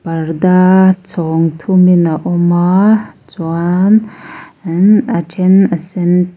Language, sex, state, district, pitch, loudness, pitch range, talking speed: Mizo, female, Mizoram, Aizawl, 180 Hz, -11 LUFS, 170-190 Hz, 120 wpm